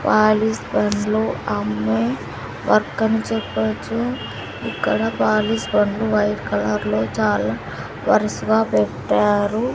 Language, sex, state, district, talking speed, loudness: Telugu, female, Andhra Pradesh, Sri Satya Sai, 90 wpm, -20 LUFS